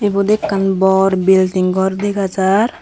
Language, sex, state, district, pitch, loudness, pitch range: Chakma, female, Tripura, Dhalai, 195 Hz, -14 LUFS, 190-205 Hz